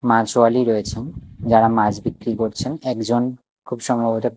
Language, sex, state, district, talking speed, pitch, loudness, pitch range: Bengali, male, Odisha, Nuapada, 125 wpm, 115 Hz, -19 LUFS, 110-120 Hz